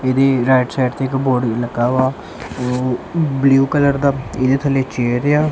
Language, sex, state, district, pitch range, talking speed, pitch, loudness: Punjabi, male, Punjab, Kapurthala, 125-135 Hz, 185 wpm, 130 Hz, -17 LUFS